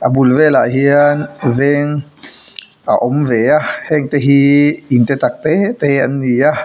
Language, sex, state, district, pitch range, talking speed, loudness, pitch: Mizo, male, Mizoram, Aizawl, 130-150 Hz, 170 wpm, -13 LUFS, 145 Hz